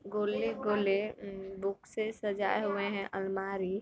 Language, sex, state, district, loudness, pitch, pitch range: Hindi, female, Uttar Pradesh, Gorakhpur, -34 LUFS, 195 Hz, 195-205 Hz